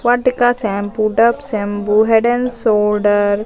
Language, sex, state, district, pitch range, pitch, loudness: Hindi, female, Bihar, Katihar, 205-240 Hz, 215 Hz, -15 LUFS